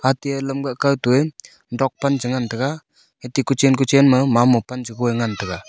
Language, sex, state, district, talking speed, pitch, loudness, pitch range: Wancho, male, Arunachal Pradesh, Longding, 200 wpm, 135 Hz, -19 LUFS, 120-135 Hz